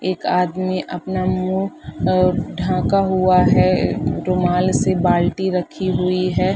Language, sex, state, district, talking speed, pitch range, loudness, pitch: Hindi, female, Bihar, Saharsa, 130 wpm, 180-185 Hz, -18 LUFS, 185 Hz